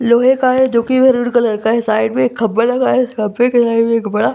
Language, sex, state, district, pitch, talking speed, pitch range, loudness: Hindi, female, Bihar, Vaishali, 235 Hz, 305 wpm, 225-250 Hz, -14 LUFS